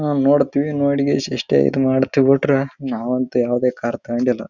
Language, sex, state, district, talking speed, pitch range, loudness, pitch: Kannada, male, Karnataka, Raichur, 160 wpm, 125-140 Hz, -18 LUFS, 130 Hz